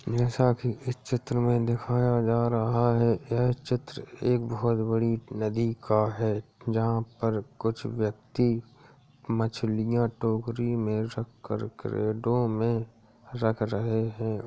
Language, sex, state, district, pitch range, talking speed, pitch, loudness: Hindi, female, Uttar Pradesh, Jalaun, 110-120 Hz, 135 wpm, 115 Hz, -28 LUFS